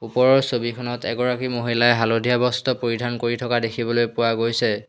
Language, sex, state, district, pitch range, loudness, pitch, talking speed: Assamese, male, Assam, Hailakandi, 115-125 Hz, -21 LUFS, 120 Hz, 145 wpm